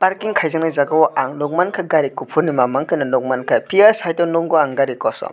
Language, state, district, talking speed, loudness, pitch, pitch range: Kokborok, Tripura, West Tripura, 225 wpm, -17 LUFS, 160 Hz, 140-185 Hz